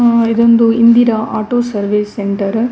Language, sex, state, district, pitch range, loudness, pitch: Kannada, female, Karnataka, Dakshina Kannada, 210-235 Hz, -12 LUFS, 230 Hz